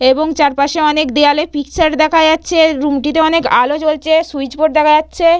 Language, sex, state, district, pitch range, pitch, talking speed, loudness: Bengali, female, West Bengal, Purulia, 290-320 Hz, 310 Hz, 165 wpm, -12 LUFS